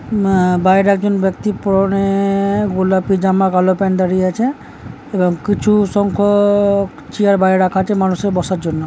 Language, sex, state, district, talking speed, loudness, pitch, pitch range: Bengali, male, West Bengal, Kolkata, 155 wpm, -15 LUFS, 195 Hz, 185-205 Hz